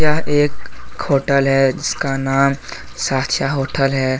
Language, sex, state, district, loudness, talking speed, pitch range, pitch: Hindi, male, Jharkhand, Deoghar, -17 LUFS, 130 wpm, 135-140 Hz, 135 Hz